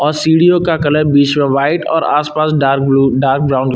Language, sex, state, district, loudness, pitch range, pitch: Hindi, male, Uttar Pradesh, Lucknow, -12 LUFS, 135-155 Hz, 145 Hz